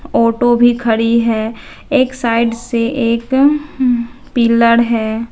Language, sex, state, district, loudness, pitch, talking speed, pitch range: Hindi, female, Bihar, Katihar, -14 LUFS, 235 Hz, 125 wpm, 230-245 Hz